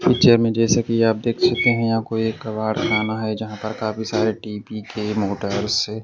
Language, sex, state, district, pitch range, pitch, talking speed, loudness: Hindi, male, Bihar, Kaimur, 110-115 Hz, 110 Hz, 200 wpm, -20 LUFS